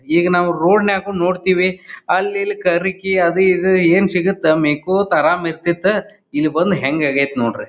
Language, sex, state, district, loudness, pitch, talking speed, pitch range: Kannada, male, Karnataka, Dharwad, -16 LUFS, 180 Hz, 155 wpm, 165-190 Hz